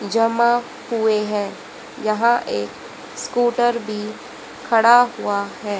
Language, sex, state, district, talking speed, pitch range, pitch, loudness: Hindi, female, Haryana, Rohtak, 105 wpm, 210-240 Hz, 225 Hz, -19 LUFS